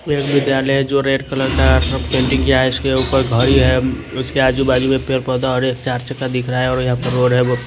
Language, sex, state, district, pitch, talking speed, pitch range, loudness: Hindi, male, Odisha, Nuapada, 130 Hz, 245 wpm, 125-135 Hz, -16 LUFS